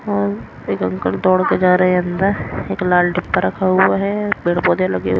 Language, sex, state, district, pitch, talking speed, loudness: Hindi, female, Haryana, Rohtak, 175 Hz, 210 wpm, -17 LUFS